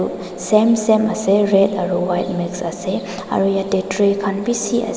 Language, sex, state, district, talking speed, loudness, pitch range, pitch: Nagamese, female, Nagaland, Dimapur, 170 wpm, -18 LUFS, 180-215 Hz, 195 Hz